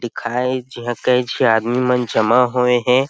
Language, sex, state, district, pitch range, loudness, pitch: Chhattisgarhi, male, Chhattisgarh, Sarguja, 120-125 Hz, -17 LUFS, 125 Hz